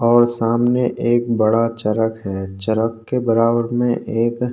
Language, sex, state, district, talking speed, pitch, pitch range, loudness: Hindi, male, Chhattisgarh, Korba, 145 wpm, 115 Hz, 110-120 Hz, -18 LUFS